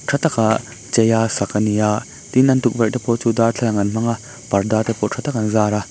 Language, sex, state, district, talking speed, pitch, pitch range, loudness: Mizo, male, Mizoram, Aizawl, 255 wpm, 115 Hz, 105-120 Hz, -18 LUFS